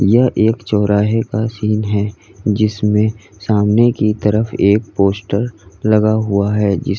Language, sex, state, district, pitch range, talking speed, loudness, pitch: Hindi, male, Uttar Pradesh, Lalitpur, 105-110 Hz, 135 wpm, -15 LUFS, 105 Hz